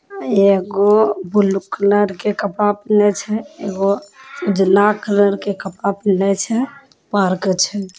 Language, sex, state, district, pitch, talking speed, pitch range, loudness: Hindi, female, Bihar, Begusarai, 200 Hz, 135 wpm, 195-210 Hz, -17 LUFS